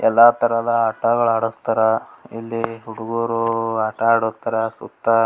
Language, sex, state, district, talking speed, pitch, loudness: Kannada, male, Karnataka, Gulbarga, 115 wpm, 115 Hz, -19 LUFS